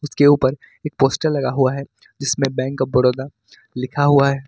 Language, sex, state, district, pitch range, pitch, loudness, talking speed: Hindi, male, Jharkhand, Ranchi, 130-145 Hz, 135 Hz, -18 LUFS, 190 wpm